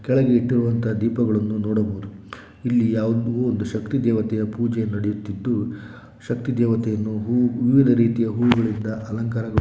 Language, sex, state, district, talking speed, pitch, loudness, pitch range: Kannada, male, Karnataka, Shimoga, 75 wpm, 115 Hz, -22 LUFS, 110-120 Hz